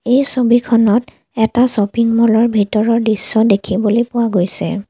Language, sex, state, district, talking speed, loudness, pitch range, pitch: Assamese, female, Assam, Kamrup Metropolitan, 110 wpm, -14 LUFS, 210-235 Hz, 225 Hz